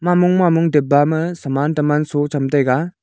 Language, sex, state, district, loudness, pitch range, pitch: Wancho, male, Arunachal Pradesh, Longding, -16 LUFS, 145-170 Hz, 150 Hz